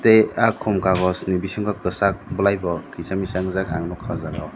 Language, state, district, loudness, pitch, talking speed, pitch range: Kokborok, Tripura, Dhalai, -22 LUFS, 95 Hz, 210 wpm, 90-100 Hz